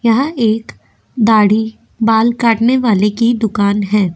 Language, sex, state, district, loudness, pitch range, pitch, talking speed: Hindi, female, Uttar Pradesh, Jyotiba Phule Nagar, -13 LUFS, 210-235 Hz, 225 Hz, 130 wpm